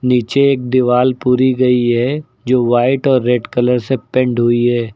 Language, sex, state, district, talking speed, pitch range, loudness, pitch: Hindi, male, Uttar Pradesh, Lucknow, 180 wpm, 120-130 Hz, -14 LUFS, 125 Hz